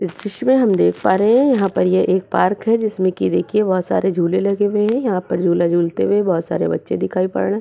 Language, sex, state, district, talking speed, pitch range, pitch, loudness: Hindi, female, Uttarakhand, Tehri Garhwal, 260 wpm, 180-210 Hz, 190 Hz, -17 LUFS